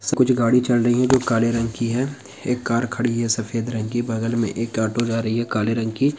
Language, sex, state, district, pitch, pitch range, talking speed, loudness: Hindi, male, Bihar, Jamui, 115 Hz, 115-125 Hz, 260 wpm, -21 LUFS